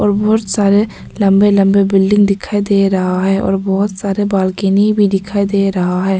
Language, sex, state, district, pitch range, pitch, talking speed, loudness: Hindi, female, Arunachal Pradesh, Papum Pare, 195-205 Hz, 200 Hz, 185 wpm, -13 LUFS